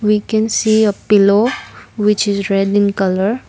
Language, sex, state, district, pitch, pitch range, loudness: English, female, Assam, Kamrup Metropolitan, 210 Hz, 200-215 Hz, -14 LUFS